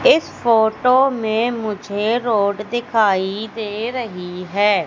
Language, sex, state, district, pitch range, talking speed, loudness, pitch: Hindi, female, Madhya Pradesh, Katni, 205-240 Hz, 110 wpm, -19 LUFS, 220 Hz